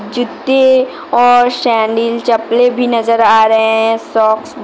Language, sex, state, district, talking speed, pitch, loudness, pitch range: Hindi, female, Jharkhand, Deoghar, 155 wpm, 230 Hz, -11 LUFS, 220-245 Hz